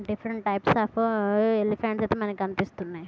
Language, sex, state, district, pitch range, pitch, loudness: Telugu, female, Andhra Pradesh, Guntur, 200-220 Hz, 210 Hz, -26 LUFS